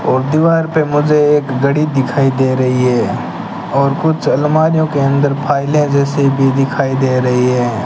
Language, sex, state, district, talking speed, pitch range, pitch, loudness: Hindi, male, Rajasthan, Bikaner, 170 wpm, 130-150 Hz, 140 Hz, -13 LUFS